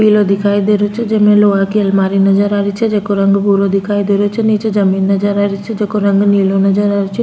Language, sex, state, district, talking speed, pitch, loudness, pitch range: Rajasthani, female, Rajasthan, Churu, 275 wpm, 200 Hz, -12 LUFS, 195-210 Hz